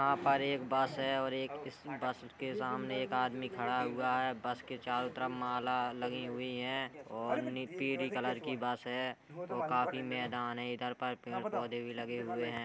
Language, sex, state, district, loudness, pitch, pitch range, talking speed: Hindi, male, Uttar Pradesh, Hamirpur, -37 LUFS, 125 Hz, 125-130 Hz, 205 wpm